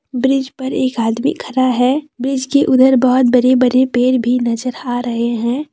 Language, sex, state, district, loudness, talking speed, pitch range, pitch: Hindi, female, Jharkhand, Deoghar, -15 LUFS, 180 wpm, 245-265 Hz, 255 Hz